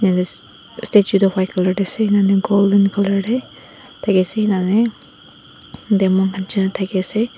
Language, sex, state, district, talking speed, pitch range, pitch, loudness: Nagamese, female, Nagaland, Dimapur, 140 wpm, 190-210 Hz, 195 Hz, -17 LUFS